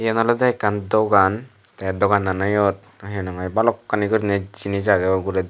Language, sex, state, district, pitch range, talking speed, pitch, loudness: Chakma, male, Tripura, Dhalai, 95-110 Hz, 150 wpm, 100 Hz, -20 LUFS